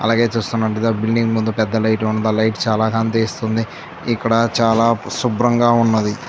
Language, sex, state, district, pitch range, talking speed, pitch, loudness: Telugu, male, Andhra Pradesh, Chittoor, 110-115 Hz, 150 wpm, 115 Hz, -17 LUFS